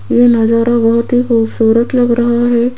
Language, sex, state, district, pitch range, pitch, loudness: Hindi, female, Rajasthan, Jaipur, 230-240 Hz, 235 Hz, -11 LUFS